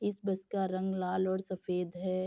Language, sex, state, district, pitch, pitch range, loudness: Hindi, female, Uttar Pradesh, Jyotiba Phule Nagar, 185 Hz, 185-190 Hz, -34 LUFS